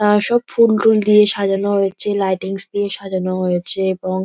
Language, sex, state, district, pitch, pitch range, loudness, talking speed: Bengali, female, West Bengal, North 24 Parganas, 200 Hz, 190-210 Hz, -16 LUFS, 155 wpm